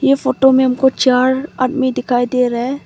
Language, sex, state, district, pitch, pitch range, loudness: Hindi, female, Arunachal Pradesh, Longding, 260 Hz, 250-265 Hz, -14 LUFS